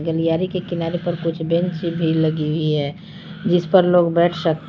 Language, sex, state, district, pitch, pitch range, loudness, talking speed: Hindi, female, Jharkhand, Palamu, 170 Hz, 160-175 Hz, -19 LUFS, 205 wpm